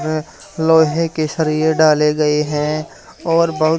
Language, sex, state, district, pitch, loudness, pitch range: Hindi, male, Haryana, Charkhi Dadri, 155 Hz, -16 LUFS, 150-160 Hz